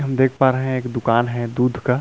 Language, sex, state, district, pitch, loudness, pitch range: Hindi, male, Chhattisgarh, Rajnandgaon, 125 Hz, -19 LUFS, 120-130 Hz